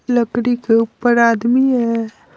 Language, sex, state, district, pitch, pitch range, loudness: Hindi, male, Bihar, Patna, 235 Hz, 230-245 Hz, -16 LUFS